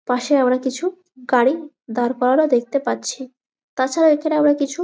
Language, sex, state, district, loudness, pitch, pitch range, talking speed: Bengali, female, West Bengal, Jalpaiguri, -19 LUFS, 265 Hz, 250-305 Hz, 150 wpm